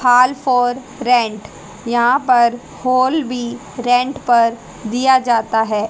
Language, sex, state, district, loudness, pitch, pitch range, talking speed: Hindi, female, Haryana, Rohtak, -16 LUFS, 245 Hz, 235-255 Hz, 120 wpm